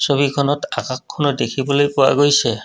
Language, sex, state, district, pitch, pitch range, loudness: Assamese, male, Assam, Kamrup Metropolitan, 140 Hz, 135-145 Hz, -17 LUFS